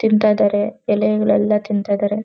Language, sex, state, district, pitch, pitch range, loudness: Kannada, female, Karnataka, Dharwad, 210 Hz, 205-210 Hz, -17 LUFS